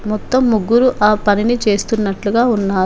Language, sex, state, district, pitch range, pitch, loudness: Telugu, female, Telangana, Komaram Bheem, 205-235 Hz, 215 Hz, -15 LUFS